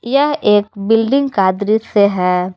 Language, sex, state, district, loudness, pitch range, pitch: Hindi, female, Jharkhand, Garhwa, -14 LUFS, 195-240 Hz, 210 Hz